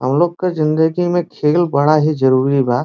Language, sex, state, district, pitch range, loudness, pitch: Bhojpuri, male, Uttar Pradesh, Varanasi, 135-175 Hz, -15 LUFS, 155 Hz